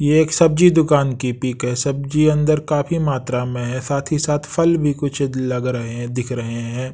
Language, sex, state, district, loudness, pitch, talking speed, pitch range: Hindi, male, Bihar, West Champaran, -18 LUFS, 140 Hz, 215 wpm, 125-150 Hz